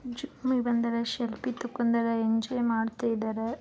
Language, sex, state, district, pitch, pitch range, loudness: Kannada, female, Karnataka, Raichur, 235 Hz, 230-245 Hz, -29 LUFS